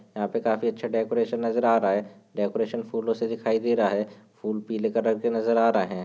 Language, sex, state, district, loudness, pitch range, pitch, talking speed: Hindi, male, Maharashtra, Sindhudurg, -26 LUFS, 105-115 Hz, 110 Hz, 240 wpm